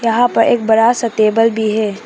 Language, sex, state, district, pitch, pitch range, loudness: Hindi, female, Arunachal Pradesh, Papum Pare, 225 Hz, 220-230 Hz, -13 LUFS